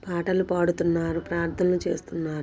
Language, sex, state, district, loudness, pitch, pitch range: Telugu, female, Andhra Pradesh, Guntur, -26 LUFS, 170 Hz, 165-180 Hz